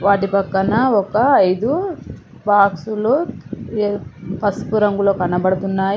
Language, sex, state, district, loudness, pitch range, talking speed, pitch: Telugu, female, Telangana, Mahabubabad, -17 LUFS, 190-215 Hz, 80 wpm, 200 Hz